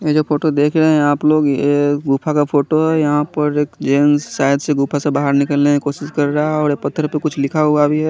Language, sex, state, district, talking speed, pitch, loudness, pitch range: Hindi, male, Chandigarh, Chandigarh, 275 wpm, 145 Hz, -16 LUFS, 145-155 Hz